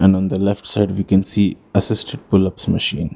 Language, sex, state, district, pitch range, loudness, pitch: English, male, Karnataka, Bangalore, 95-100 Hz, -18 LUFS, 100 Hz